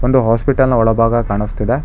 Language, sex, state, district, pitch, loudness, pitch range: Kannada, male, Karnataka, Bangalore, 115 Hz, -14 LUFS, 115-130 Hz